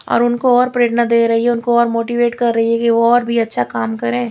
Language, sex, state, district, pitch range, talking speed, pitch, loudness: Hindi, female, Chandigarh, Chandigarh, 230-240 Hz, 265 wpm, 235 Hz, -15 LUFS